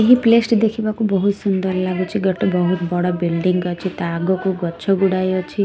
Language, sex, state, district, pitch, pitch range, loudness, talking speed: Odia, female, Odisha, Sambalpur, 185 Hz, 180-200 Hz, -18 LUFS, 180 wpm